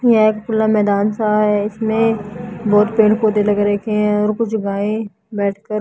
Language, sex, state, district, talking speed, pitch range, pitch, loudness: Hindi, female, Haryana, Jhajjar, 175 wpm, 205-220 Hz, 210 Hz, -16 LUFS